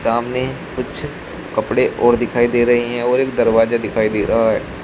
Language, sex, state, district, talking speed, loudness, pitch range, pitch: Hindi, male, Uttar Pradesh, Shamli, 185 wpm, -17 LUFS, 115-120 Hz, 120 Hz